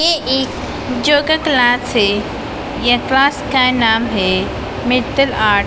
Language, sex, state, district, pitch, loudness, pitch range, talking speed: Hindi, female, Punjab, Pathankot, 255 Hz, -15 LUFS, 225-275 Hz, 125 wpm